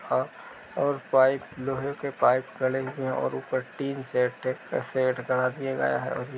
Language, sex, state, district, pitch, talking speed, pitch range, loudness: Hindi, male, Uttar Pradesh, Jalaun, 130 Hz, 150 wpm, 130-135 Hz, -27 LUFS